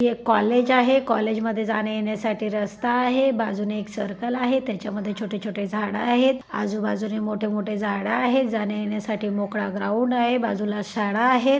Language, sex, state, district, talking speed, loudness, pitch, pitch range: Marathi, female, Maharashtra, Dhule, 165 wpm, -23 LUFS, 215 Hz, 210-240 Hz